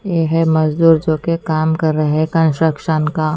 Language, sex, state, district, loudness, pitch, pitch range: Hindi, female, Chandigarh, Chandigarh, -15 LUFS, 160 Hz, 155-165 Hz